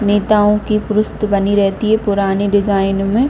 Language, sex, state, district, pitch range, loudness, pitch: Hindi, female, Jharkhand, Jamtara, 200-215 Hz, -15 LUFS, 205 Hz